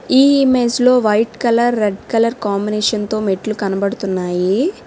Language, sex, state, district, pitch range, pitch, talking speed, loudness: Telugu, female, Telangana, Hyderabad, 200-240 Hz, 215 Hz, 135 wpm, -16 LUFS